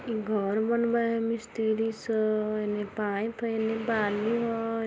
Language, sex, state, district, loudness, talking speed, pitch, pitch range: Maithili, female, Bihar, Samastipur, -29 LUFS, 145 wpm, 225 Hz, 215-230 Hz